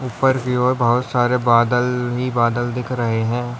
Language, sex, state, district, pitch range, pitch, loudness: Hindi, male, Uttar Pradesh, Lalitpur, 120-125 Hz, 125 Hz, -18 LUFS